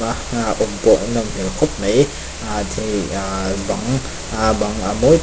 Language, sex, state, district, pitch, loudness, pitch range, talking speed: Mizo, male, Mizoram, Aizawl, 105 Hz, -19 LUFS, 95-110 Hz, 160 wpm